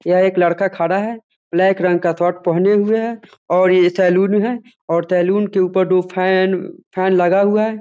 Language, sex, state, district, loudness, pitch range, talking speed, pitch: Hindi, male, Bihar, Muzaffarpur, -16 LUFS, 180-205 Hz, 200 wpm, 185 Hz